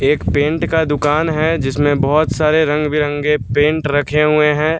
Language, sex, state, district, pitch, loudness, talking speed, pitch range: Hindi, male, Bihar, West Champaran, 150 Hz, -15 LUFS, 160 wpm, 145-155 Hz